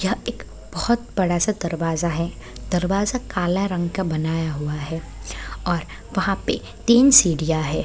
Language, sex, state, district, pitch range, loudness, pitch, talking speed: Hindi, female, Bihar, Sitamarhi, 165-195 Hz, -21 LUFS, 175 Hz, 155 wpm